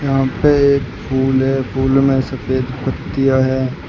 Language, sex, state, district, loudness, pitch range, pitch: Hindi, male, Uttar Pradesh, Shamli, -16 LUFS, 130-135 Hz, 130 Hz